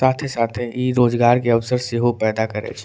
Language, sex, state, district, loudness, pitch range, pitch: Angika, male, Bihar, Bhagalpur, -19 LUFS, 115-125 Hz, 120 Hz